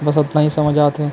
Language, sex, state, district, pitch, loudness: Chhattisgarhi, male, Chhattisgarh, Kabirdham, 150 Hz, -16 LUFS